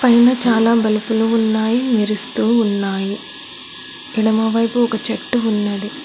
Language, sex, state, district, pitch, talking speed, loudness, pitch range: Telugu, female, Telangana, Hyderabad, 225 Hz, 100 wpm, -16 LUFS, 215-235 Hz